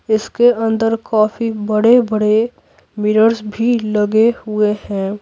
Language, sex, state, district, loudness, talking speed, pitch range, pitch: Hindi, female, Bihar, Patna, -15 LUFS, 105 wpm, 210-225 Hz, 220 Hz